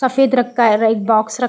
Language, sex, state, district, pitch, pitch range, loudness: Hindi, female, Uttarakhand, Uttarkashi, 240 Hz, 220-255 Hz, -15 LUFS